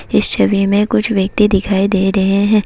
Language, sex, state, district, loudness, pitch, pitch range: Hindi, female, Assam, Kamrup Metropolitan, -14 LUFS, 200 Hz, 195-210 Hz